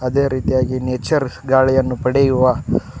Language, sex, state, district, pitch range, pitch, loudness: Kannada, male, Karnataka, Koppal, 125-135 Hz, 130 Hz, -17 LUFS